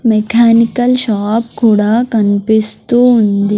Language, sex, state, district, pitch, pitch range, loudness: Telugu, male, Andhra Pradesh, Sri Satya Sai, 225 Hz, 210-235 Hz, -11 LUFS